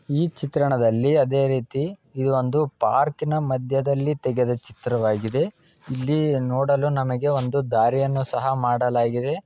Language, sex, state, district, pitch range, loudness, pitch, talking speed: Kannada, male, Karnataka, Dharwad, 125-145 Hz, -22 LUFS, 135 Hz, 110 wpm